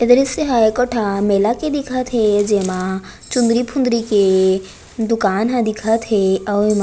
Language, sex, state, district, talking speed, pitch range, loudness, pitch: Chhattisgarhi, female, Chhattisgarh, Raigarh, 160 wpm, 200-245 Hz, -17 LUFS, 220 Hz